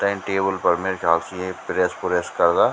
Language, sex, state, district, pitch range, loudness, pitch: Garhwali, male, Uttarakhand, Tehri Garhwal, 90-95 Hz, -22 LUFS, 95 Hz